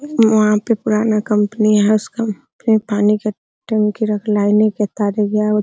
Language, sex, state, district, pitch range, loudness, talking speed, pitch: Hindi, female, Bihar, Araria, 210-220 Hz, -16 LUFS, 150 wpm, 215 Hz